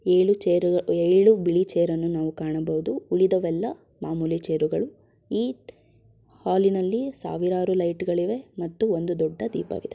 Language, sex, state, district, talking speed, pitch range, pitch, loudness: Kannada, female, Karnataka, Shimoga, 135 wpm, 165-190 Hz, 175 Hz, -24 LUFS